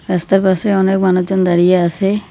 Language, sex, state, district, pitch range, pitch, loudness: Bengali, female, West Bengal, Cooch Behar, 180-195 Hz, 190 Hz, -14 LUFS